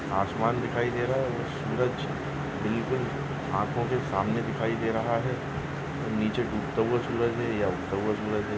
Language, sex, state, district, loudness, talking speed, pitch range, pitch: Hindi, male, Chhattisgarh, Balrampur, -29 LUFS, 170 wpm, 105-125 Hz, 115 Hz